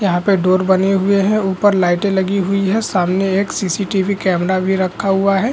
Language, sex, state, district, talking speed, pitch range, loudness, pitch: Hindi, male, Bihar, Lakhisarai, 205 wpm, 185-200 Hz, -16 LUFS, 195 Hz